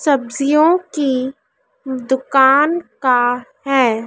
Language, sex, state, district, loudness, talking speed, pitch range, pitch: Hindi, female, Madhya Pradesh, Dhar, -16 LUFS, 75 wpm, 250-285 Hz, 265 Hz